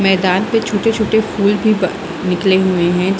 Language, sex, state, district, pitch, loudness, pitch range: Hindi, female, Bihar, Muzaffarpur, 195 Hz, -15 LUFS, 185-215 Hz